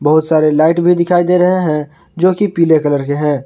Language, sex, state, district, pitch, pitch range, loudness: Hindi, male, Jharkhand, Garhwa, 160 Hz, 150-175 Hz, -13 LUFS